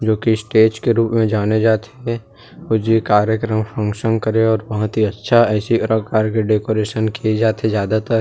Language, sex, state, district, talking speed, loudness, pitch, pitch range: Chhattisgarhi, male, Chhattisgarh, Rajnandgaon, 220 wpm, -17 LUFS, 110 Hz, 110-115 Hz